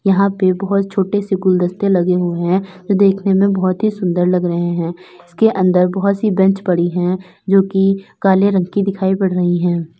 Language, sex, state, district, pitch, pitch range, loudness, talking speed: Bhojpuri, female, Uttar Pradesh, Gorakhpur, 190 Hz, 180-195 Hz, -16 LUFS, 205 wpm